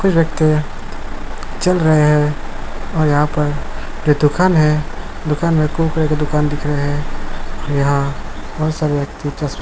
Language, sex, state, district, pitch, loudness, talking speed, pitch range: Hindi, male, Chhattisgarh, Bilaspur, 150 Hz, -17 LUFS, 160 wpm, 145-155 Hz